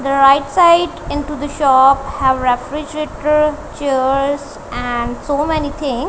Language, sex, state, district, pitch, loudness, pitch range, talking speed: English, female, Punjab, Kapurthala, 285 Hz, -15 LUFS, 270-300 Hz, 130 wpm